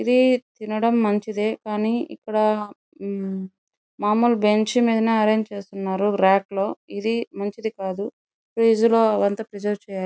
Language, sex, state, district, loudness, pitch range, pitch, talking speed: Telugu, female, Andhra Pradesh, Chittoor, -22 LUFS, 200-225 Hz, 215 Hz, 125 wpm